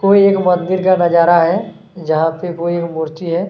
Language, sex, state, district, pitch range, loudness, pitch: Hindi, male, Chhattisgarh, Kabirdham, 170-185 Hz, -14 LUFS, 175 Hz